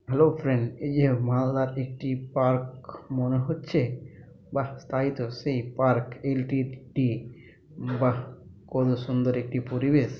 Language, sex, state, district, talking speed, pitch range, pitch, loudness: Bengali, male, West Bengal, Malda, 130 wpm, 125-135 Hz, 130 Hz, -27 LUFS